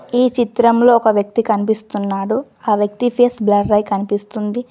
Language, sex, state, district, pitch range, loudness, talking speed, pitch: Telugu, female, Telangana, Mahabubabad, 205-245 Hz, -16 LUFS, 125 wpm, 220 Hz